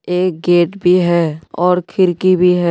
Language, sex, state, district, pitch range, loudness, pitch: Hindi, male, Tripura, West Tripura, 175-180 Hz, -14 LUFS, 180 Hz